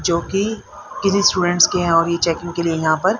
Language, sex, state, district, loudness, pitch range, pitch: Hindi, female, Haryana, Rohtak, -17 LUFS, 170-195 Hz, 175 Hz